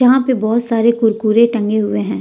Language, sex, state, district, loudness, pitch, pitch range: Hindi, female, Jharkhand, Deoghar, -14 LUFS, 225 Hz, 215-235 Hz